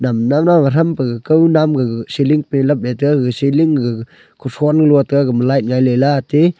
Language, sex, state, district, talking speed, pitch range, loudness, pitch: Wancho, male, Arunachal Pradesh, Longding, 255 wpm, 125-150 Hz, -14 LUFS, 140 Hz